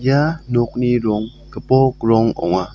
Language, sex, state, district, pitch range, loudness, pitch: Garo, male, Meghalaya, South Garo Hills, 110-130 Hz, -17 LUFS, 120 Hz